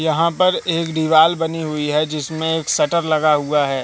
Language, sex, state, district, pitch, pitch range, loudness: Hindi, male, Madhya Pradesh, Katni, 160 Hz, 150-165 Hz, -17 LUFS